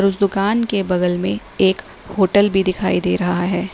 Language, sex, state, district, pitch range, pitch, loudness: Hindi, female, Uttar Pradesh, Lalitpur, 180-200 Hz, 190 Hz, -18 LUFS